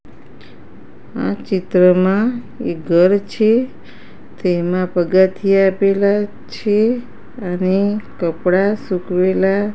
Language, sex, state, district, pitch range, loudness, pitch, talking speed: Gujarati, female, Gujarat, Gandhinagar, 180-205 Hz, -16 LUFS, 190 Hz, 75 wpm